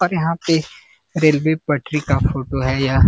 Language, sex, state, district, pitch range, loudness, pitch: Hindi, male, Bihar, Jamui, 135-160 Hz, -19 LUFS, 150 Hz